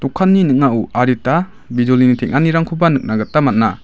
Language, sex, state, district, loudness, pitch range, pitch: Garo, male, Meghalaya, West Garo Hills, -14 LUFS, 125-165 Hz, 135 Hz